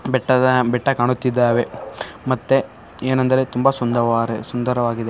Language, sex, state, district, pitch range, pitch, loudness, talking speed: Kannada, male, Karnataka, Shimoga, 120-130 Hz, 125 Hz, -19 LUFS, 95 wpm